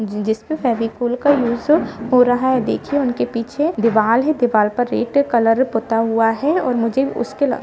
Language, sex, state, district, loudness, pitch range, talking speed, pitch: Hindi, female, Jharkhand, Jamtara, -17 LUFS, 225-270 Hz, 175 wpm, 245 Hz